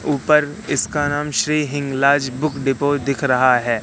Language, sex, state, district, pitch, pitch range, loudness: Hindi, male, Madhya Pradesh, Katni, 140 Hz, 135-145 Hz, -18 LUFS